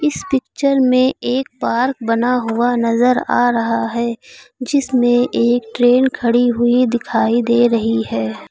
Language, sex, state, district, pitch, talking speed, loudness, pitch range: Hindi, female, Uttar Pradesh, Lucknow, 240 Hz, 140 wpm, -16 LUFS, 230-250 Hz